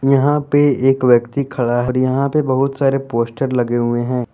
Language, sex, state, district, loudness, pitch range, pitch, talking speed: Hindi, male, Jharkhand, Deoghar, -16 LUFS, 120-140 Hz, 130 Hz, 205 wpm